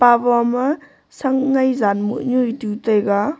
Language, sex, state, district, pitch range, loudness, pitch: Wancho, female, Arunachal Pradesh, Longding, 215-265 Hz, -18 LUFS, 245 Hz